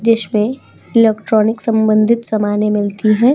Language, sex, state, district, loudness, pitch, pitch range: Hindi, female, Uttar Pradesh, Hamirpur, -14 LUFS, 220 Hz, 210-230 Hz